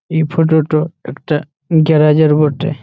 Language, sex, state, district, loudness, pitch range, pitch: Bengali, male, West Bengal, Malda, -13 LUFS, 150-160 Hz, 155 Hz